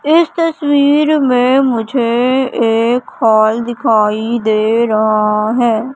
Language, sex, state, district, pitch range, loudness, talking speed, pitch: Hindi, female, Madhya Pradesh, Katni, 220-265 Hz, -13 LUFS, 100 wpm, 235 Hz